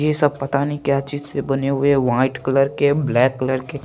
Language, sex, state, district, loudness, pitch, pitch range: Hindi, male, Chandigarh, Chandigarh, -19 LUFS, 140 Hz, 130-145 Hz